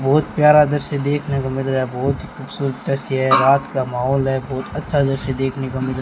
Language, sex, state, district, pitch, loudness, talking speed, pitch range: Hindi, male, Rajasthan, Bikaner, 135 Hz, -19 LUFS, 230 wpm, 130-140 Hz